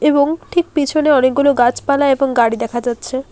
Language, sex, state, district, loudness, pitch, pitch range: Bengali, female, West Bengal, Alipurduar, -15 LUFS, 275 Hz, 245-295 Hz